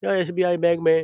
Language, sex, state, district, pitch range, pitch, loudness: Hindi, male, Bihar, Jahanabad, 160-180 Hz, 170 Hz, -21 LUFS